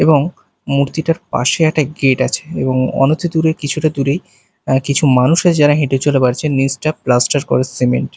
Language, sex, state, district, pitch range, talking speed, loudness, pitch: Bengali, male, Bihar, Katihar, 130-155 Hz, 170 wpm, -15 LUFS, 140 Hz